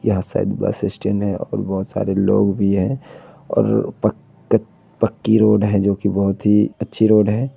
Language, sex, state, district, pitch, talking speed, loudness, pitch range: Hindi, male, Bihar, Begusarai, 100 Hz, 160 wpm, -18 LUFS, 100-105 Hz